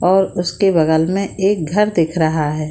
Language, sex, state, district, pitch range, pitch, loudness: Hindi, female, Bihar, Saran, 160-195 Hz, 175 Hz, -16 LUFS